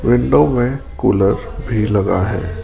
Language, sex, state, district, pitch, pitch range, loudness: Hindi, male, Rajasthan, Jaipur, 105 Hz, 95-120 Hz, -16 LUFS